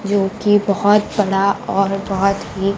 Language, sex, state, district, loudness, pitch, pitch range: Hindi, female, Bihar, Kaimur, -17 LUFS, 200 Hz, 195-205 Hz